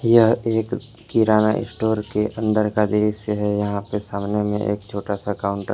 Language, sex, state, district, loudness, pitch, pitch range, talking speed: Hindi, male, Jharkhand, Palamu, -21 LUFS, 105 Hz, 105-110 Hz, 190 wpm